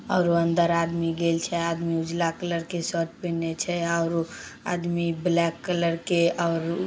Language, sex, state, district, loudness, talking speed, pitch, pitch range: Maithili, female, Bihar, Samastipur, -26 LUFS, 155 wpm, 170 Hz, 165-175 Hz